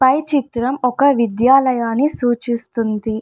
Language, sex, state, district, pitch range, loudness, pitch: Telugu, female, Andhra Pradesh, Anantapur, 235-270 Hz, -16 LUFS, 245 Hz